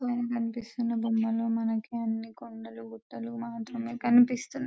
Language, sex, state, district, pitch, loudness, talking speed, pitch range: Telugu, female, Telangana, Nalgonda, 230 Hz, -29 LUFS, 130 wpm, 225-240 Hz